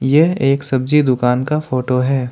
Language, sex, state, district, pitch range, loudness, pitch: Hindi, male, Jharkhand, Ranchi, 130-150 Hz, -16 LUFS, 135 Hz